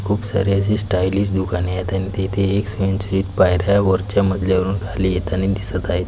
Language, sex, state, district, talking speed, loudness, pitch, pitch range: Marathi, male, Maharashtra, Pune, 170 wpm, -19 LUFS, 95 Hz, 95-100 Hz